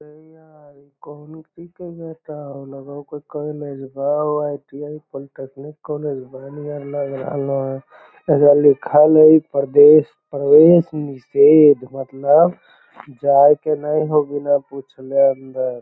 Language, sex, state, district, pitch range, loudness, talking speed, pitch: Magahi, male, Bihar, Lakhisarai, 140-150 Hz, -15 LUFS, 135 wpm, 145 Hz